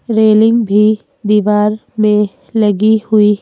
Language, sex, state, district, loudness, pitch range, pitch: Hindi, female, Madhya Pradesh, Bhopal, -12 LUFS, 210-220 Hz, 215 Hz